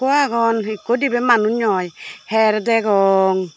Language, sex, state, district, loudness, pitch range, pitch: Chakma, female, Tripura, Dhalai, -17 LUFS, 195-240 Hz, 220 Hz